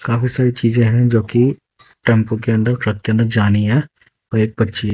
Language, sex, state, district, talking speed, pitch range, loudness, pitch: Hindi, male, Haryana, Jhajjar, 195 wpm, 110-120 Hz, -16 LUFS, 115 Hz